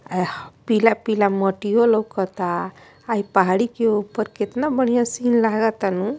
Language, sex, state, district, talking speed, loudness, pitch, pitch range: Bhojpuri, female, Uttar Pradesh, Ghazipur, 135 wpm, -20 LUFS, 215 Hz, 195-230 Hz